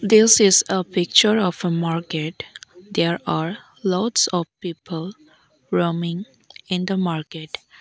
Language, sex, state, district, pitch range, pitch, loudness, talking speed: English, female, Arunachal Pradesh, Lower Dibang Valley, 170-195 Hz, 180 Hz, -20 LUFS, 125 wpm